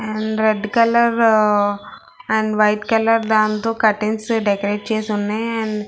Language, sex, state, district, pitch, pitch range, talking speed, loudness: Telugu, female, Telangana, Hyderabad, 215 Hz, 210-225 Hz, 145 wpm, -18 LUFS